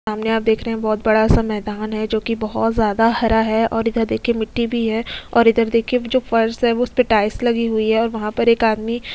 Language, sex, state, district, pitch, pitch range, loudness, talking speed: Hindi, female, Uttar Pradesh, Etah, 225 Hz, 220-230 Hz, -18 LUFS, 255 wpm